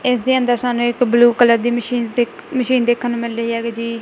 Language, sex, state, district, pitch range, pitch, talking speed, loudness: Punjabi, female, Punjab, Kapurthala, 235-245 Hz, 240 Hz, 240 wpm, -17 LUFS